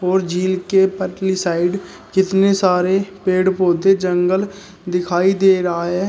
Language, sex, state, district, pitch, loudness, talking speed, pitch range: Hindi, male, Uttar Pradesh, Shamli, 185 Hz, -17 LUFS, 140 wpm, 180-190 Hz